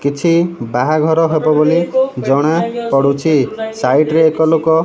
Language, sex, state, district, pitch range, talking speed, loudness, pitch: Odia, male, Odisha, Malkangiri, 145-170 Hz, 135 wpm, -14 LUFS, 160 Hz